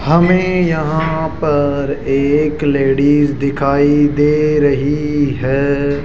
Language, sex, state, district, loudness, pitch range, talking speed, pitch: Hindi, male, Rajasthan, Jaipur, -14 LUFS, 140-150 Hz, 90 wpm, 145 Hz